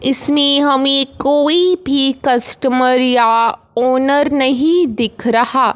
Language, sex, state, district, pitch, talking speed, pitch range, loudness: Hindi, female, Punjab, Fazilka, 270 Hz, 105 wpm, 250-285 Hz, -13 LUFS